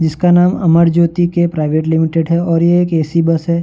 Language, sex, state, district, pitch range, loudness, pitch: Hindi, male, Uttar Pradesh, Varanasi, 160-175 Hz, -13 LUFS, 170 Hz